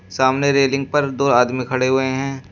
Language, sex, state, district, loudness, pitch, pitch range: Hindi, male, Uttar Pradesh, Shamli, -18 LUFS, 135 Hz, 130-140 Hz